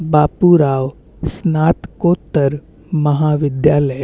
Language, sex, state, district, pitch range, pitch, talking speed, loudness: Hindi, male, Chhattisgarh, Bastar, 145-165 Hz, 150 Hz, 75 wpm, -15 LUFS